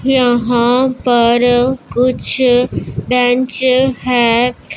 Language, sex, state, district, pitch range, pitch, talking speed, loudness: Hindi, female, Punjab, Pathankot, 245-255 Hz, 250 Hz, 65 wpm, -13 LUFS